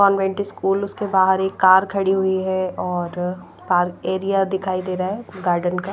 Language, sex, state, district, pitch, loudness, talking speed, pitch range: Hindi, female, Punjab, Pathankot, 190 Hz, -20 LUFS, 180 wpm, 185-195 Hz